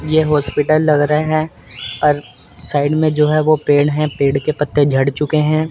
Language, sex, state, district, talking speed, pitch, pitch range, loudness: Hindi, male, Chandigarh, Chandigarh, 200 wpm, 150 Hz, 140-155 Hz, -15 LUFS